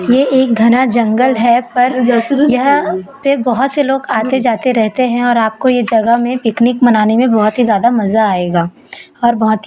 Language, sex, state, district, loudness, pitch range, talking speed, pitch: Hindi, female, Chhattisgarh, Raipur, -12 LUFS, 225-255 Hz, 190 wpm, 240 Hz